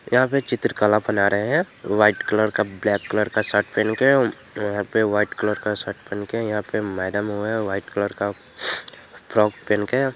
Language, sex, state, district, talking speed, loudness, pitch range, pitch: Hindi, male, Bihar, Vaishali, 200 wpm, -22 LUFS, 105-110 Hz, 105 Hz